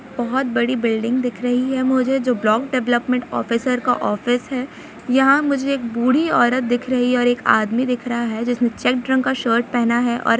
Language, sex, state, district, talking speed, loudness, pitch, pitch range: Hindi, female, Jharkhand, Sahebganj, 215 wpm, -19 LUFS, 245 Hz, 240-260 Hz